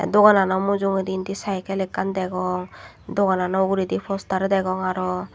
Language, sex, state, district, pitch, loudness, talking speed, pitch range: Chakma, female, Tripura, Dhalai, 190 Hz, -22 LUFS, 125 wpm, 185-195 Hz